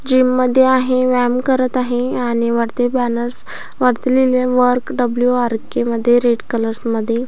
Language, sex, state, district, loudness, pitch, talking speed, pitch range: Marathi, female, Maharashtra, Aurangabad, -15 LUFS, 245 Hz, 155 wpm, 235-255 Hz